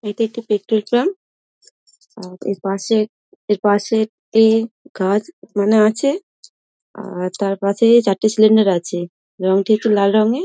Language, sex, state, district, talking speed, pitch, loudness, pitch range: Bengali, female, West Bengal, Dakshin Dinajpur, 145 wpm, 215 Hz, -17 LUFS, 200-225 Hz